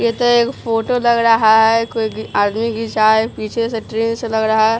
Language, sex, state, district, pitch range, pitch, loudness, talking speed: Hindi, female, Bihar, Patna, 220-230 Hz, 225 Hz, -15 LUFS, 225 wpm